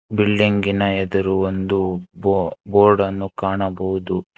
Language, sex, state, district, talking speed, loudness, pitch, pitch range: Kannada, male, Karnataka, Bangalore, 80 wpm, -19 LUFS, 95 Hz, 95-100 Hz